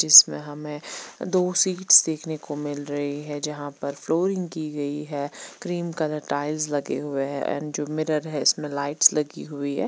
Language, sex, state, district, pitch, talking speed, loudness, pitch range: Hindi, female, Chandigarh, Chandigarh, 150 Hz, 180 wpm, -24 LUFS, 145-155 Hz